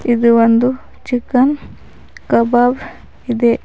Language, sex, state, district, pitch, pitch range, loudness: Kannada, female, Karnataka, Bidar, 245 Hz, 235-250 Hz, -14 LUFS